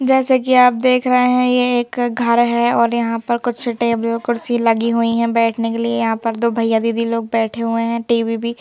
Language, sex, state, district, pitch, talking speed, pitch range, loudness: Hindi, female, Madhya Pradesh, Bhopal, 235 Hz, 230 wpm, 230-240 Hz, -16 LUFS